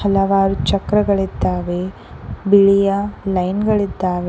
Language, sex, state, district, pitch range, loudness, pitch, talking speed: Kannada, female, Karnataka, Koppal, 185-200 Hz, -17 LUFS, 195 Hz, 70 wpm